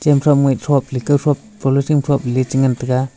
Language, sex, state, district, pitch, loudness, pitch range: Wancho, male, Arunachal Pradesh, Longding, 135 Hz, -16 LUFS, 130-145 Hz